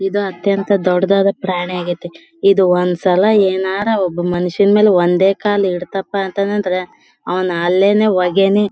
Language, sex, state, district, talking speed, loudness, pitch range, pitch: Kannada, female, Karnataka, Bellary, 130 wpm, -15 LUFS, 180-200 Hz, 190 Hz